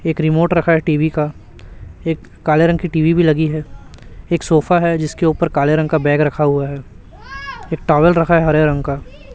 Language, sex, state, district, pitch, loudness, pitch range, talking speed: Hindi, male, Chhattisgarh, Raipur, 155 Hz, -15 LUFS, 150-165 Hz, 210 wpm